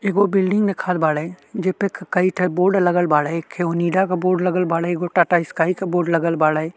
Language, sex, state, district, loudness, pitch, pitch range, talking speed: Bhojpuri, male, Uttar Pradesh, Ghazipur, -19 LUFS, 180 Hz, 165-185 Hz, 215 wpm